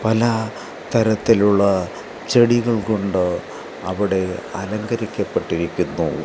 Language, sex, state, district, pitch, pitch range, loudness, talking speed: Malayalam, male, Kerala, Kasaragod, 105 Hz, 95-115 Hz, -20 LUFS, 55 wpm